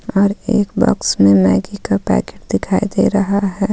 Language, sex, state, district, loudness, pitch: Hindi, female, Jharkhand, Ranchi, -15 LUFS, 195 Hz